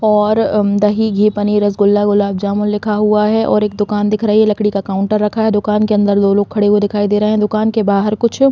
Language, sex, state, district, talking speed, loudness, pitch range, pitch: Hindi, female, Chhattisgarh, Balrampur, 255 wpm, -14 LUFS, 205-215 Hz, 210 Hz